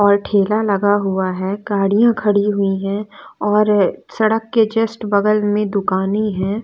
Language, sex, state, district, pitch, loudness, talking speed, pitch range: Hindi, female, Bihar, West Champaran, 205 Hz, -17 LUFS, 155 wpm, 200-215 Hz